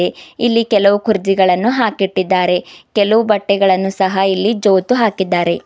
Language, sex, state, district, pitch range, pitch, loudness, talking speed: Kannada, female, Karnataka, Bidar, 190-220 Hz, 195 Hz, -14 LUFS, 105 wpm